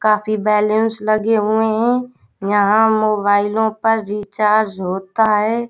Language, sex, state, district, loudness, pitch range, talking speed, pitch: Hindi, female, Uttar Pradesh, Hamirpur, -16 LUFS, 210-220 Hz, 115 wpm, 215 Hz